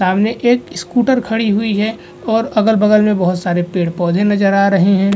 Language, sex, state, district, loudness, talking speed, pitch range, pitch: Hindi, male, Bihar, Vaishali, -14 LUFS, 185 wpm, 190-220 Hz, 205 Hz